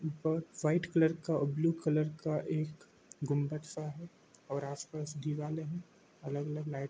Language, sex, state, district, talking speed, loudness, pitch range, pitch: Hindi, male, Bihar, Gopalganj, 165 wpm, -36 LUFS, 150-160 Hz, 155 Hz